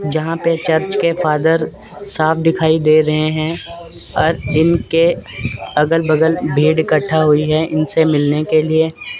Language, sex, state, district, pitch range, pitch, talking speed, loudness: Hindi, male, Chandigarh, Chandigarh, 155-165 Hz, 160 Hz, 145 wpm, -15 LUFS